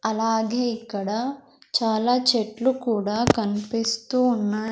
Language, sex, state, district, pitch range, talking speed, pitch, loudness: Telugu, female, Andhra Pradesh, Sri Satya Sai, 220-245 Hz, 90 wpm, 225 Hz, -23 LUFS